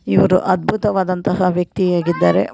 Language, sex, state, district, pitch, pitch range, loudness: Kannada, female, Karnataka, Koppal, 185 Hz, 180-185 Hz, -17 LUFS